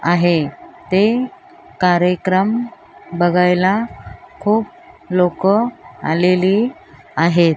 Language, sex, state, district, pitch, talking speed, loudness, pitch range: Marathi, female, Maharashtra, Mumbai Suburban, 185 Hz, 65 wpm, -17 LUFS, 175-235 Hz